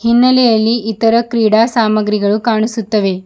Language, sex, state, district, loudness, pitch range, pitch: Kannada, female, Karnataka, Bidar, -12 LUFS, 215-235 Hz, 225 Hz